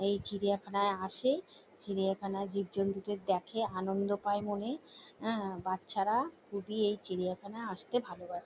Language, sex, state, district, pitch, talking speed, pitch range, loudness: Bengali, female, West Bengal, Jalpaiguri, 200 Hz, 115 wpm, 190-210 Hz, -35 LUFS